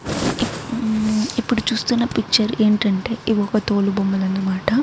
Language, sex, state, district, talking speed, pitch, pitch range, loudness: Telugu, female, Andhra Pradesh, Guntur, 110 wpm, 215 Hz, 200-235 Hz, -20 LUFS